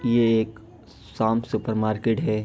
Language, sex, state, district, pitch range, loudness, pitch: Hindi, male, Bihar, Kishanganj, 110-115 Hz, -24 LUFS, 110 Hz